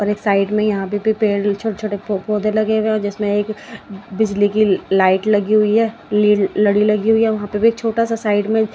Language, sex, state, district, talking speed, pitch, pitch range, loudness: Hindi, female, Odisha, Nuapada, 240 wpm, 210 Hz, 205-220 Hz, -17 LUFS